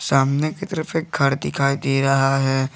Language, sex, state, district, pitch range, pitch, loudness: Hindi, male, Jharkhand, Garhwa, 135-155 Hz, 140 Hz, -20 LUFS